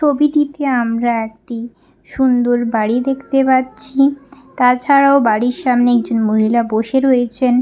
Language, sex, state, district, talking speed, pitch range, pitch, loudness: Bengali, female, West Bengal, Paschim Medinipur, 110 wpm, 235-270 Hz, 250 Hz, -15 LUFS